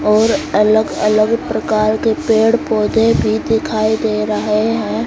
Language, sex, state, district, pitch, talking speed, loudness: Hindi, female, Haryana, Jhajjar, 210 Hz, 140 wpm, -15 LUFS